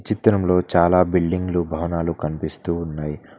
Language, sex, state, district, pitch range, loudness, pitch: Telugu, male, Telangana, Mahabubabad, 80-90 Hz, -21 LUFS, 85 Hz